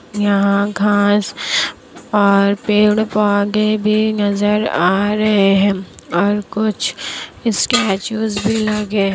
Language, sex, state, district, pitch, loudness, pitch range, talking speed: Hindi, female, Bihar, Kishanganj, 205 Hz, -16 LUFS, 200-215 Hz, 105 wpm